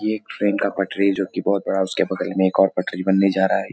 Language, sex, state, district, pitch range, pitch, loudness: Hindi, male, Bihar, Lakhisarai, 95-100 Hz, 95 Hz, -20 LUFS